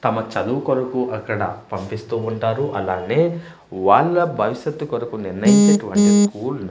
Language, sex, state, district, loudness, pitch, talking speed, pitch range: Telugu, male, Andhra Pradesh, Manyam, -19 LUFS, 130 Hz, 105 wpm, 110-170 Hz